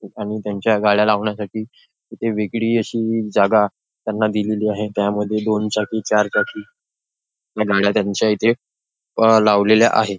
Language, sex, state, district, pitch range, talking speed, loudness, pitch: Marathi, male, Maharashtra, Nagpur, 105-110 Hz, 130 wpm, -18 LUFS, 105 Hz